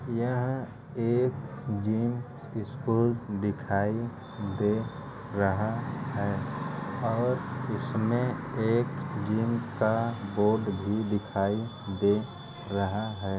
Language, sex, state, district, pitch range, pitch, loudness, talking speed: Hindi, male, Uttar Pradesh, Ghazipur, 105-125 Hz, 115 Hz, -30 LUFS, 85 wpm